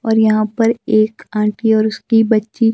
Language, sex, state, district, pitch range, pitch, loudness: Hindi, male, Himachal Pradesh, Shimla, 215-225 Hz, 220 Hz, -15 LUFS